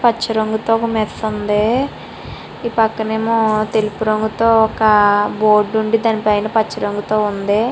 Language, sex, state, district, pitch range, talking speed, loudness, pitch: Telugu, female, Andhra Pradesh, Srikakulam, 210-225 Hz, 125 wpm, -16 LUFS, 220 Hz